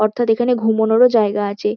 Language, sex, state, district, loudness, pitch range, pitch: Bengali, female, West Bengal, Kolkata, -16 LUFS, 210-235 Hz, 220 Hz